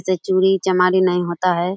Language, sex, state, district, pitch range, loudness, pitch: Hindi, female, Bihar, Kishanganj, 180-185 Hz, -17 LUFS, 185 Hz